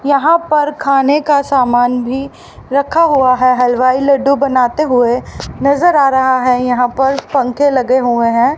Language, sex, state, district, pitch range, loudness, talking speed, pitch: Hindi, female, Haryana, Rohtak, 250-280 Hz, -12 LUFS, 160 wpm, 270 Hz